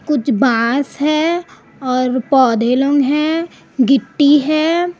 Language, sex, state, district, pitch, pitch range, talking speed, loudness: Hindi, female, Chhattisgarh, Raipur, 280 Hz, 255-310 Hz, 110 wpm, -15 LUFS